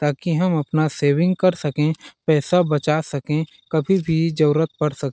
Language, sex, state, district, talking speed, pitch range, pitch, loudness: Hindi, male, Chhattisgarh, Balrampur, 165 wpm, 150-165 Hz, 155 Hz, -20 LUFS